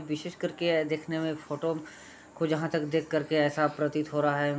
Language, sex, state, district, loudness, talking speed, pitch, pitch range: Hindi, male, Bihar, Gopalganj, -30 LUFS, 235 wpm, 155 Hz, 150-165 Hz